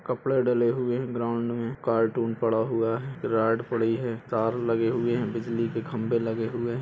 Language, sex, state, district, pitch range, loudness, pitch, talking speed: Hindi, male, Maharashtra, Solapur, 115-120 Hz, -27 LUFS, 115 Hz, 185 wpm